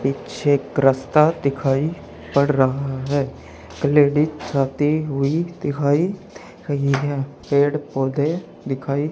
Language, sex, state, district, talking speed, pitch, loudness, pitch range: Hindi, male, Haryana, Charkhi Dadri, 110 wpm, 140 Hz, -20 LUFS, 135-150 Hz